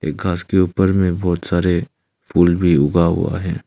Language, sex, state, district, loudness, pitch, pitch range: Hindi, male, Arunachal Pradesh, Longding, -17 LUFS, 90 Hz, 85-95 Hz